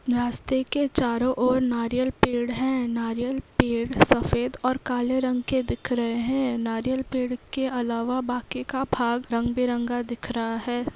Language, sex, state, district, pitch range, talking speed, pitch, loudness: Hindi, female, Andhra Pradesh, Krishna, 240-260 Hz, 140 wpm, 250 Hz, -25 LUFS